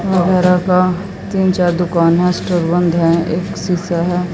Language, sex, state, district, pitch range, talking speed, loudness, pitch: Hindi, female, Haryana, Jhajjar, 170-185 Hz, 140 wpm, -15 LUFS, 180 Hz